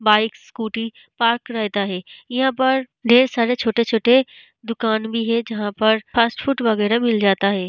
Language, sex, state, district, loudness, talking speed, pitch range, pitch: Hindi, female, Bihar, Vaishali, -19 LUFS, 170 wpm, 215-240 Hz, 230 Hz